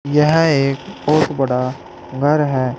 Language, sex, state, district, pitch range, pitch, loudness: Hindi, male, Uttar Pradesh, Saharanpur, 135-150 Hz, 145 Hz, -17 LUFS